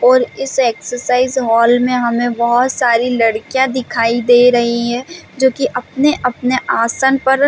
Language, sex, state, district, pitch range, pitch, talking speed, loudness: Hindi, female, Chhattisgarh, Bastar, 235-260 Hz, 250 Hz, 160 wpm, -14 LUFS